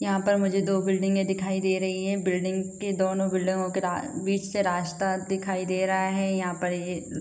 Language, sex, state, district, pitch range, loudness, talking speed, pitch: Hindi, female, Uttar Pradesh, Gorakhpur, 185-195 Hz, -27 LUFS, 215 wpm, 190 Hz